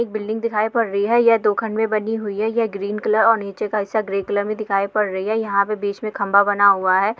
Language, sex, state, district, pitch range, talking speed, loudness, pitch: Hindi, female, Goa, North and South Goa, 200-220 Hz, 285 wpm, -19 LUFS, 210 Hz